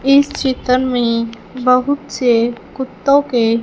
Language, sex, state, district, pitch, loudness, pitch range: Hindi, female, Punjab, Fazilka, 250 Hz, -16 LUFS, 235-265 Hz